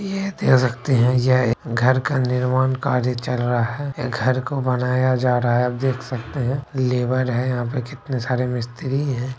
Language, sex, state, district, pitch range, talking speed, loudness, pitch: Maithili, male, Bihar, Kishanganj, 125-130 Hz, 190 wpm, -21 LUFS, 125 Hz